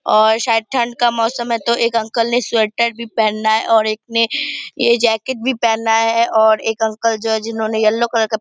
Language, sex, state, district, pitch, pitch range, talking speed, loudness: Hindi, female, Bihar, Purnia, 225 Hz, 220-235 Hz, 230 wpm, -16 LUFS